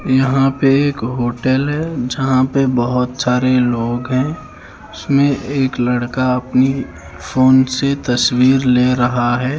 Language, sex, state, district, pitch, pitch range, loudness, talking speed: Hindi, male, Haryana, Charkhi Dadri, 130 Hz, 120-135 Hz, -15 LUFS, 130 wpm